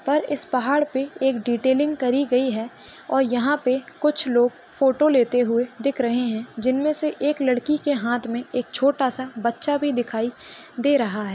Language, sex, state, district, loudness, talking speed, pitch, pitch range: Hindi, female, Maharashtra, Solapur, -22 LUFS, 185 wpm, 260 Hz, 240-285 Hz